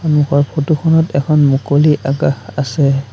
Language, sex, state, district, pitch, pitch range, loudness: Assamese, male, Assam, Sonitpur, 145 Hz, 140-155 Hz, -14 LUFS